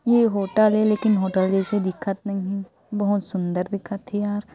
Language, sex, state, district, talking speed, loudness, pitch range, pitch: Hindi, female, Chhattisgarh, Korba, 185 wpm, -23 LUFS, 195-210 Hz, 200 Hz